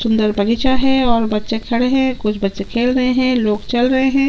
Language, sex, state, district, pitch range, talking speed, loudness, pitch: Hindi, female, Chhattisgarh, Sukma, 215-260 Hz, 225 wpm, -16 LUFS, 240 Hz